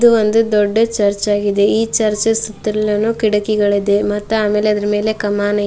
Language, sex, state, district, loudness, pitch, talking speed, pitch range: Kannada, female, Karnataka, Dharwad, -15 LUFS, 210 Hz, 170 wpm, 205-220 Hz